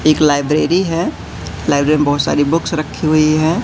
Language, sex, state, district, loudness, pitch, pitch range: Hindi, male, Madhya Pradesh, Katni, -15 LUFS, 155 Hz, 145-160 Hz